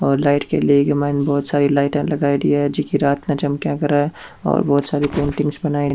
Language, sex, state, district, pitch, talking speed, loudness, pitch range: Rajasthani, male, Rajasthan, Churu, 145 Hz, 210 wpm, -18 LUFS, 140-145 Hz